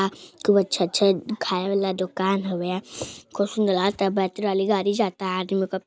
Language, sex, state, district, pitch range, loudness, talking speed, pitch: Hindi, female, Uttar Pradesh, Deoria, 185-200 Hz, -24 LUFS, 185 wpm, 195 Hz